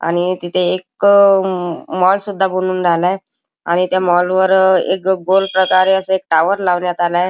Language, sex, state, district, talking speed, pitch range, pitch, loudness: Marathi, male, Maharashtra, Chandrapur, 170 wpm, 180-190 Hz, 185 Hz, -14 LUFS